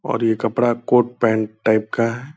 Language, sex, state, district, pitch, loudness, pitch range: Hindi, male, Bihar, Purnia, 115 Hz, -19 LUFS, 110-120 Hz